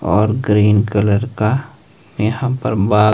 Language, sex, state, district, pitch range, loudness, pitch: Hindi, male, Himachal Pradesh, Shimla, 105-125 Hz, -16 LUFS, 105 Hz